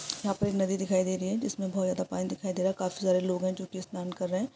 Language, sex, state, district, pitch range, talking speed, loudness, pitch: Hindi, male, Uttarakhand, Tehri Garhwal, 185-195 Hz, 340 wpm, -31 LUFS, 185 Hz